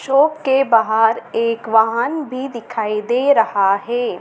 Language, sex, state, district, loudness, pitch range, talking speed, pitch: Hindi, female, Madhya Pradesh, Dhar, -17 LUFS, 220-265 Hz, 145 wpm, 230 Hz